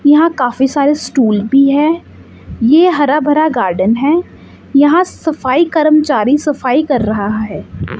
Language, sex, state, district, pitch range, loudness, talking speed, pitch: Hindi, female, Chandigarh, Chandigarh, 245-310 Hz, -12 LUFS, 145 wpm, 285 Hz